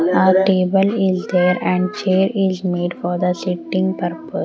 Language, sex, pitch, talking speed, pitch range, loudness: English, female, 185 Hz, 175 wpm, 180-190 Hz, -18 LUFS